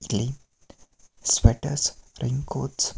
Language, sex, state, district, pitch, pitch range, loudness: Kannada, male, Karnataka, Mysore, 125 Hz, 110-140 Hz, -25 LUFS